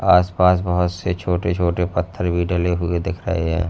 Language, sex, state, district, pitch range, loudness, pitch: Hindi, male, Uttar Pradesh, Lalitpur, 85-90 Hz, -20 LUFS, 90 Hz